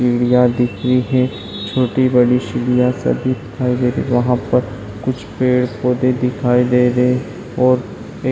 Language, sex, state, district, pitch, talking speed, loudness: Hindi, male, Chhattisgarh, Raigarh, 125 Hz, 160 wpm, -16 LUFS